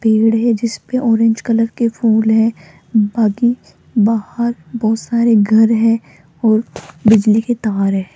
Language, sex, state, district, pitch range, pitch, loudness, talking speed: Hindi, female, Rajasthan, Jaipur, 215-230 Hz, 225 Hz, -15 LUFS, 145 wpm